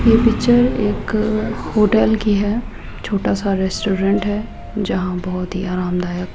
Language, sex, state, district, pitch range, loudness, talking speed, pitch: Hindi, female, Rajasthan, Jaipur, 185-220 Hz, -18 LUFS, 140 wpm, 205 Hz